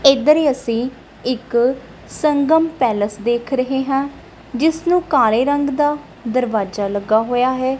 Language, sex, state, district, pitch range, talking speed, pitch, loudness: Punjabi, female, Punjab, Kapurthala, 240-285 Hz, 130 wpm, 260 Hz, -18 LUFS